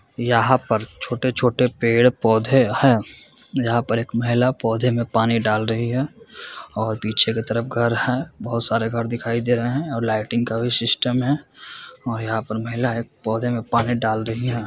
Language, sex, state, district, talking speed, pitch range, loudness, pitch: Hindi, male, Bihar, Gopalganj, 185 wpm, 115-125 Hz, -21 LUFS, 115 Hz